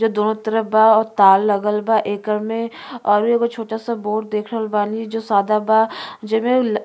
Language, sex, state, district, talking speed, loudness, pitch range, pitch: Bhojpuri, female, Uttar Pradesh, Ghazipur, 185 wpm, -18 LUFS, 210-225 Hz, 220 Hz